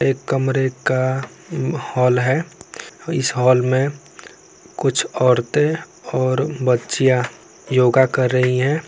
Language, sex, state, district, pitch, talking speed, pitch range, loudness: Hindi, male, Bihar, Saran, 130 Hz, 110 wpm, 125-150 Hz, -19 LUFS